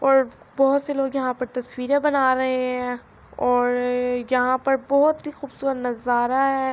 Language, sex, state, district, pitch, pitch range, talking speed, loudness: Urdu, female, Andhra Pradesh, Anantapur, 260 Hz, 250-275 Hz, 160 wpm, -22 LUFS